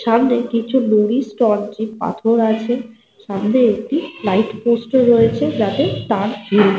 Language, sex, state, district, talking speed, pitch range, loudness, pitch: Bengali, female, Jharkhand, Sahebganj, 140 wpm, 210-240 Hz, -17 LUFS, 225 Hz